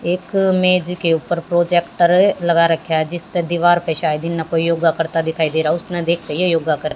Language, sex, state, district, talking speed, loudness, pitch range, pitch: Hindi, female, Haryana, Jhajjar, 215 wpm, -17 LUFS, 165-175 Hz, 170 Hz